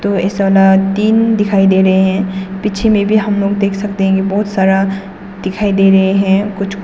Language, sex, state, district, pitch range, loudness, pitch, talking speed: Hindi, female, Arunachal Pradesh, Papum Pare, 190-205 Hz, -12 LUFS, 195 Hz, 200 wpm